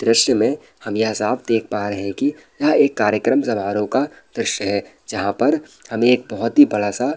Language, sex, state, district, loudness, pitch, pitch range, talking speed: Hindi, male, Bihar, Madhepura, -19 LUFS, 110 Hz, 105-125 Hz, 220 wpm